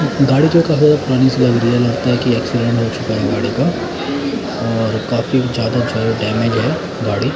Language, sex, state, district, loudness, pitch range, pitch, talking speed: Hindi, male, Bihar, Katihar, -16 LUFS, 115-130 Hz, 120 Hz, 210 wpm